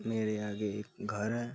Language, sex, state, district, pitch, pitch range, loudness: Hindi, male, Bihar, Kishanganj, 105 Hz, 105-115 Hz, -36 LUFS